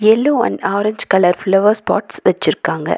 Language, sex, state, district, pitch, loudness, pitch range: Tamil, female, Tamil Nadu, Nilgiris, 205 Hz, -15 LUFS, 195-220 Hz